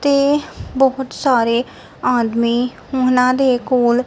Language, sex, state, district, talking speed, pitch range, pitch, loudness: Punjabi, female, Punjab, Kapurthala, 105 wpm, 240-265 Hz, 255 Hz, -17 LUFS